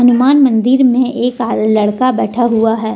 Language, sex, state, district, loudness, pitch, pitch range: Hindi, female, Jharkhand, Deoghar, -12 LUFS, 245 Hz, 225-255 Hz